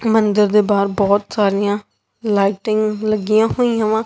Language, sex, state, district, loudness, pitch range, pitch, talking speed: Punjabi, female, Punjab, Kapurthala, -17 LUFS, 205-215 Hz, 210 Hz, 135 wpm